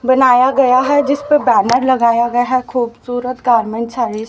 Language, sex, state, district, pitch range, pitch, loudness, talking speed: Hindi, female, Haryana, Rohtak, 235-260 Hz, 250 Hz, -14 LUFS, 155 wpm